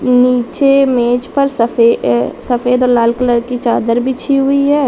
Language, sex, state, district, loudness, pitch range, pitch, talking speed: Hindi, female, Bihar, Gaya, -12 LUFS, 235-270 Hz, 250 Hz, 160 wpm